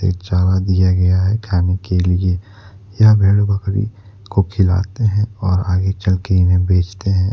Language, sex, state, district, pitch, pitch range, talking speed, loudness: Hindi, male, Jharkhand, Deoghar, 95 Hz, 90-100 Hz, 155 wpm, -16 LUFS